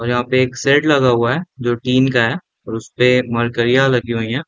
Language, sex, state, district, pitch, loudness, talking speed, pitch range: Hindi, male, Chhattisgarh, Bilaspur, 125 Hz, -16 LUFS, 225 wpm, 120-130 Hz